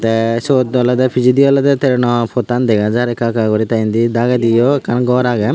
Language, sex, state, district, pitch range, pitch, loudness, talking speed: Chakma, male, Tripura, Unakoti, 115-125 Hz, 120 Hz, -14 LUFS, 205 wpm